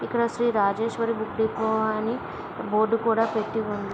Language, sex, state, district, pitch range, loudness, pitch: Telugu, female, Andhra Pradesh, Visakhapatnam, 215-230 Hz, -25 LUFS, 220 Hz